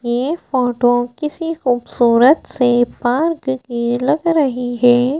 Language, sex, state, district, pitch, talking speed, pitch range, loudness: Hindi, female, Madhya Pradesh, Bhopal, 250 Hz, 115 wpm, 245-300 Hz, -16 LUFS